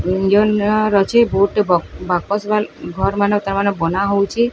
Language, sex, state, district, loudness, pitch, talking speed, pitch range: Odia, female, Odisha, Sambalpur, -17 LUFS, 200 Hz, 120 wpm, 195-210 Hz